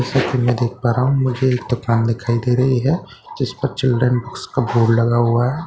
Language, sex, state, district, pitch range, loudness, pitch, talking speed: Hindi, male, Bihar, Katihar, 120-130 Hz, -18 LUFS, 125 Hz, 245 wpm